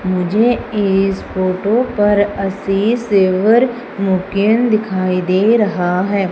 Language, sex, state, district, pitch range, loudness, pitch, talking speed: Hindi, female, Madhya Pradesh, Umaria, 190-215 Hz, -15 LUFS, 200 Hz, 105 wpm